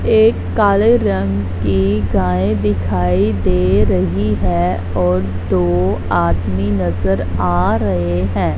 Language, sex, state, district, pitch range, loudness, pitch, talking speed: Hindi, female, Punjab, Fazilka, 90-100 Hz, -16 LUFS, 95 Hz, 110 wpm